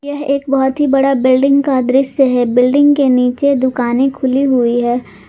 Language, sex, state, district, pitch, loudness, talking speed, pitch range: Hindi, female, Jharkhand, Garhwa, 265 Hz, -13 LUFS, 180 wpm, 250-275 Hz